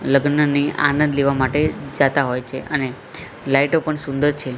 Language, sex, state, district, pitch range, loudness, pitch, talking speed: Gujarati, male, Gujarat, Gandhinagar, 130-145 Hz, -19 LUFS, 140 Hz, 155 wpm